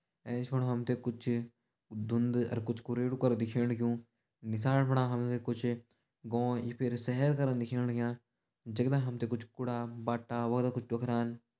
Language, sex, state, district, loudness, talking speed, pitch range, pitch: Hindi, male, Uttarakhand, Uttarkashi, -34 LUFS, 180 wpm, 120-125 Hz, 120 Hz